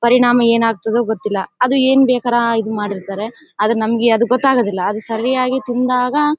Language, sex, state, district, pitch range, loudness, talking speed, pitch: Kannada, female, Karnataka, Bellary, 220-250 Hz, -16 LUFS, 140 wpm, 235 Hz